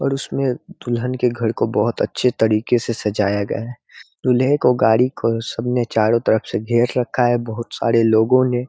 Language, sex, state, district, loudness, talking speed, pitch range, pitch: Hindi, male, Bihar, Muzaffarpur, -19 LUFS, 200 wpm, 115-125 Hz, 120 Hz